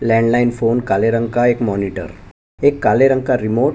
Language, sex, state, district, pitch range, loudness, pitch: Hindi, male, Chhattisgarh, Bastar, 115-125 Hz, -16 LUFS, 120 Hz